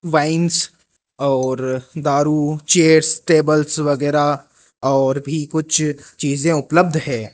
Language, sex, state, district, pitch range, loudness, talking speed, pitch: Hindi, male, Rajasthan, Jaipur, 140-160 Hz, -17 LUFS, 100 wpm, 150 Hz